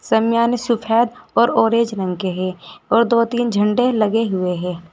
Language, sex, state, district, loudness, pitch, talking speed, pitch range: Hindi, female, Uttar Pradesh, Saharanpur, -18 LUFS, 225 Hz, 170 wpm, 185-235 Hz